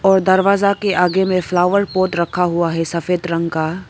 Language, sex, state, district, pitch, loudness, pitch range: Hindi, female, Arunachal Pradesh, Papum Pare, 180 Hz, -16 LUFS, 170-190 Hz